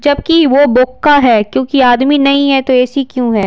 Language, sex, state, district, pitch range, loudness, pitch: Hindi, female, Bihar, Patna, 250-285 Hz, -10 LUFS, 270 Hz